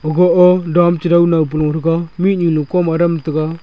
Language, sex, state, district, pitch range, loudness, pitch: Wancho, male, Arunachal Pradesh, Longding, 160-175 Hz, -14 LUFS, 170 Hz